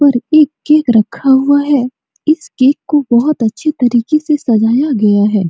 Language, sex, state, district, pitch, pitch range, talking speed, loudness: Hindi, female, Bihar, Supaul, 270 Hz, 235-300 Hz, 175 wpm, -12 LUFS